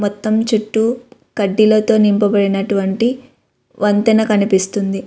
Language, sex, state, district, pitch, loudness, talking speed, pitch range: Telugu, female, Andhra Pradesh, Visakhapatnam, 210 Hz, -15 LUFS, 85 wpm, 200-225 Hz